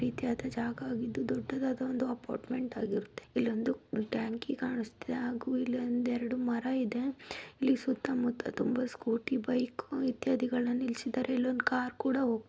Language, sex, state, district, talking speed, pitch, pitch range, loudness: Kannada, female, Karnataka, Mysore, 120 wpm, 250 Hz, 235-255 Hz, -34 LUFS